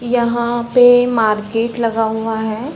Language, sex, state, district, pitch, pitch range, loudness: Hindi, female, Chhattisgarh, Balrampur, 235 Hz, 225-245 Hz, -15 LUFS